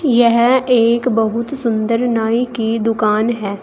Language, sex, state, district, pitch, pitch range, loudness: Hindi, female, Uttar Pradesh, Saharanpur, 230 Hz, 225-240 Hz, -15 LUFS